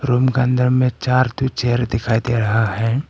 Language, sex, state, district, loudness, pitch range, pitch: Hindi, male, Arunachal Pradesh, Papum Pare, -18 LUFS, 115-130 Hz, 125 Hz